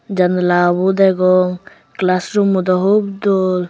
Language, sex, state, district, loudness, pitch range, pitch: Chakma, male, Tripura, Unakoti, -15 LUFS, 180-195 Hz, 185 Hz